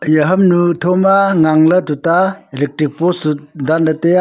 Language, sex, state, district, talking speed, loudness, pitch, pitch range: Wancho, male, Arunachal Pradesh, Longding, 185 wpm, -13 LUFS, 165 Hz, 155-180 Hz